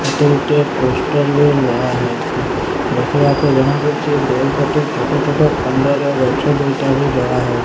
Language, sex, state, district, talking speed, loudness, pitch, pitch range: Odia, male, Odisha, Sambalpur, 100 wpm, -15 LUFS, 140 Hz, 130-145 Hz